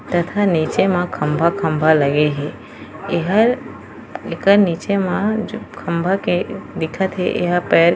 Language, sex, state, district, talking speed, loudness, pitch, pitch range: Chhattisgarhi, female, Chhattisgarh, Raigarh, 115 wpm, -18 LUFS, 175 Hz, 160-195 Hz